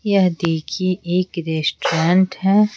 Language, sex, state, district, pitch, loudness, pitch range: Hindi, female, Bihar, Patna, 180 Hz, -19 LUFS, 170-190 Hz